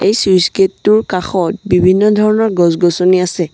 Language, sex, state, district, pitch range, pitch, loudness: Assamese, male, Assam, Sonitpur, 180-210 Hz, 185 Hz, -12 LUFS